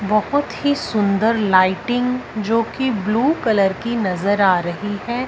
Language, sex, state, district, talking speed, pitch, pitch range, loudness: Hindi, female, Punjab, Fazilka, 150 wpm, 215 Hz, 200-245 Hz, -18 LUFS